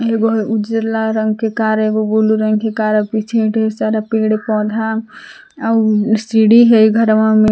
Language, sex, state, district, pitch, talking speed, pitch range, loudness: Magahi, female, Jharkhand, Palamu, 220 Hz, 160 wpm, 215-225 Hz, -14 LUFS